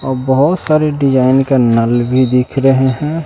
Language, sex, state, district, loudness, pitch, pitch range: Hindi, male, Bihar, West Champaran, -12 LUFS, 130 Hz, 130-140 Hz